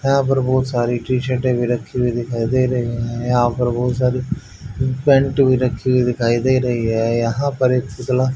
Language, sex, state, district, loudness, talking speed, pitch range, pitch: Hindi, male, Haryana, Jhajjar, -18 LUFS, 210 wpm, 120-130 Hz, 125 Hz